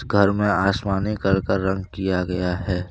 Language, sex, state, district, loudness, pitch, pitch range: Hindi, male, Jharkhand, Deoghar, -22 LUFS, 95 Hz, 95-100 Hz